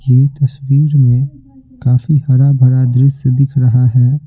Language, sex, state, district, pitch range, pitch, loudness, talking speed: Hindi, male, Bihar, Patna, 130-140 Hz, 135 Hz, -12 LUFS, 140 wpm